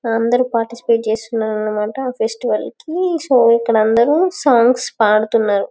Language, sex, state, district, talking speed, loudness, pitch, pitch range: Telugu, female, Telangana, Karimnagar, 95 wpm, -16 LUFS, 230 Hz, 220-250 Hz